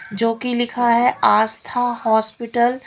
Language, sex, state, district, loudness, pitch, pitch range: Hindi, female, Haryana, Rohtak, -18 LUFS, 235 Hz, 220-245 Hz